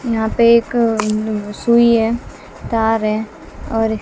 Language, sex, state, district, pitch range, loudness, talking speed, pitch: Hindi, female, Bihar, West Champaran, 215-235 Hz, -16 LUFS, 120 wpm, 225 Hz